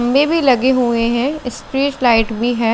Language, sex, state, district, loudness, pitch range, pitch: Hindi, female, Chandigarh, Chandigarh, -15 LUFS, 235-270 Hz, 250 Hz